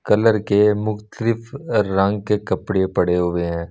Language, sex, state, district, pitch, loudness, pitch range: Hindi, male, Delhi, New Delhi, 105 Hz, -20 LUFS, 95-110 Hz